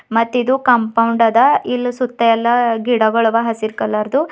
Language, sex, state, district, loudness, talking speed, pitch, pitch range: Kannada, female, Karnataka, Bidar, -15 LUFS, 180 wpm, 230 Hz, 225-245 Hz